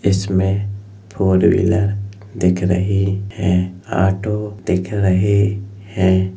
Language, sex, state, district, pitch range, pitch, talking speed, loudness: Hindi, male, Uttar Pradesh, Jalaun, 95-100 Hz, 100 Hz, 95 wpm, -18 LUFS